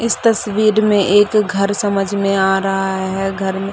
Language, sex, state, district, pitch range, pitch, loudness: Hindi, female, Chhattisgarh, Sarguja, 195-210 Hz, 200 Hz, -15 LUFS